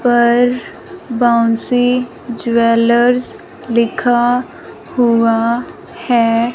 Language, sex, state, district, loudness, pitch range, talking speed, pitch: Hindi, female, Punjab, Fazilka, -14 LUFS, 235-245 Hz, 55 wpm, 240 Hz